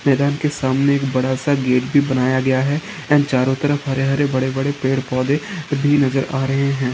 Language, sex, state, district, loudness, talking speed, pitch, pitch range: Hindi, male, Uttarakhand, Uttarkashi, -18 LUFS, 215 wpm, 135 Hz, 130-145 Hz